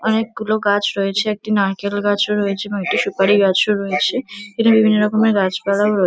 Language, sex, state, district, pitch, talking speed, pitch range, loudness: Bengali, female, West Bengal, North 24 Parganas, 205 Hz, 180 wpm, 200-215 Hz, -17 LUFS